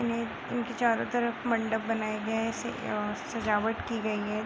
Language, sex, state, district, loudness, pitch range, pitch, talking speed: Hindi, female, Uttar Pradesh, Hamirpur, -31 LUFS, 215-235 Hz, 225 Hz, 160 wpm